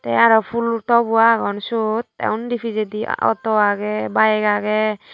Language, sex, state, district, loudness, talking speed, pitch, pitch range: Chakma, female, Tripura, Unakoti, -18 LUFS, 150 wpm, 220 Hz, 210-230 Hz